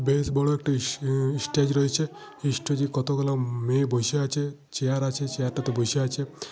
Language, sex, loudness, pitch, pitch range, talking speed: Bengali, male, -26 LUFS, 140 Hz, 130-145 Hz, 145 wpm